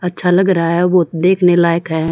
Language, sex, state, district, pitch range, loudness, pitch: Hindi, female, Haryana, Charkhi Dadri, 170-180 Hz, -13 LUFS, 175 Hz